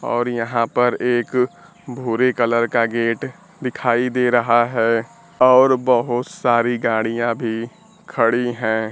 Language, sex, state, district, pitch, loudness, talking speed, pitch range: Hindi, male, Bihar, Kaimur, 120 Hz, -18 LUFS, 130 wpm, 115-125 Hz